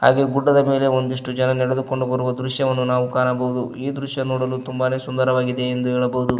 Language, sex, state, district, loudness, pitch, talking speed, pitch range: Kannada, male, Karnataka, Koppal, -20 LUFS, 130 Hz, 160 wpm, 125-130 Hz